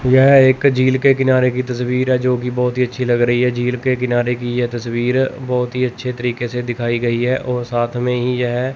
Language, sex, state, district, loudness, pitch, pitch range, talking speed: Hindi, male, Chandigarh, Chandigarh, -17 LUFS, 125 Hz, 120-130 Hz, 245 wpm